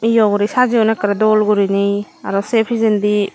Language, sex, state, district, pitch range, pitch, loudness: Chakma, female, Tripura, Dhalai, 205-225 Hz, 210 Hz, -15 LUFS